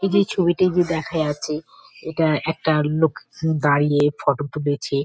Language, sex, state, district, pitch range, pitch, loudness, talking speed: Bengali, female, West Bengal, Kolkata, 145-165 Hz, 155 Hz, -21 LUFS, 145 wpm